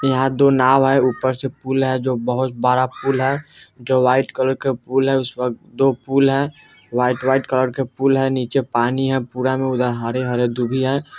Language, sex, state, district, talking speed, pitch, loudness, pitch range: Bajjika, male, Bihar, Vaishali, 215 wpm, 130 Hz, -19 LUFS, 125-135 Hz